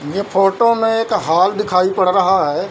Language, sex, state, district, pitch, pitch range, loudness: Hindi, male, Bihar, Darbhanga, 195 Hz, 185-210 Hz, -15 LUFS